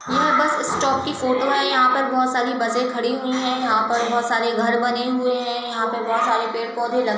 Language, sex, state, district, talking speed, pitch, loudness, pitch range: Hindi, female, Uttar Pradesh, Budaun, 240 wpm, 245 Hz, -20 LUFS, 235-255 Hz